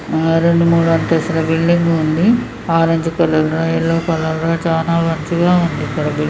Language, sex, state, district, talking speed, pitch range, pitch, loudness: Telugu, male, Andhra Pradesh, Srikakulam, 180 wpm, 160-165 Hz, 165 Hz, -15 LUFS